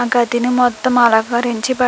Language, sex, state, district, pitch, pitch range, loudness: Telugu, female, Andhra Pradesh, Krishna, 240 Hz, 240-250 Hz, -15 LUFS